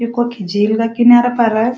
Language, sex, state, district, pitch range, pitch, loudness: Garhwali, female, Uttarakhand, Uttarkashi, 220-240 Hz, 235 Hz, -13 LUFS